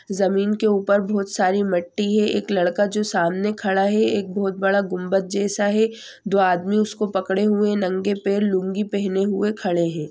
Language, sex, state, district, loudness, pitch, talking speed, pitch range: Hindi, female, Bihar, Saran, -21 LUFS, 200 Hz, 190 wpm, 190-210 Hz